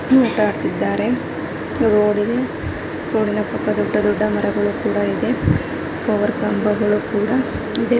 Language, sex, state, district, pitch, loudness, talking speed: Kannada, female, Karnataka, Bijapur, 210 Hz, -19 LUFS, 95 wpm